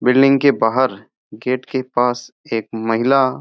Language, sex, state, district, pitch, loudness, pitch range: Rajasthani, male, Rajasthan, Churu, 125 Hz, -17 LUFS, 115-130 Hz